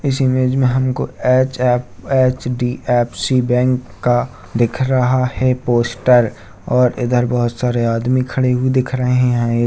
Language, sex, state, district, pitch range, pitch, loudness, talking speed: Hindi, male, Uttarakhand, Uttarkashi, 120-130 Hz, 125 Hz, -16 LUFS, 150 wpm